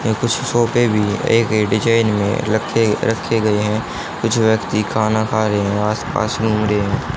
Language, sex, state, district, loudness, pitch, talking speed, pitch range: Hindi, male, Haryana, Charkhi Dadri, -17 LUFS, 110 Hz, 165 wpm, 105-115 Hz